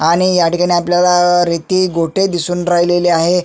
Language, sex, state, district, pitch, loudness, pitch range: Marathi, male, Maharashtra, Sindhudurg, 175 Hz, -13 LUFS, 175-180 Hz